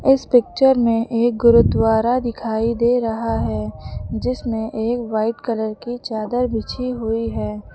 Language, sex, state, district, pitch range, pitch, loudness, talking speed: Hindi, female, Uttar Pradesh, Lucknow, 220-240 Hz, 230 Hz, -19 LUFS, 140 wpm